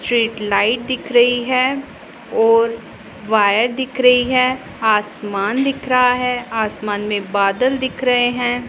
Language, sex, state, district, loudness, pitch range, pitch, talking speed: Hindi, female, Punjab, Pathankot, -17 LUFS, 215-255 Hz, 245 Hz, 140 wpm